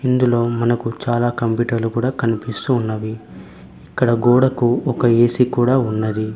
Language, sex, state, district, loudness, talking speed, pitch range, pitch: Telugu, male, Telangana, Mahabubabad, -18 LUFS, 125 wpm, 115-125 Hz, 120 Hz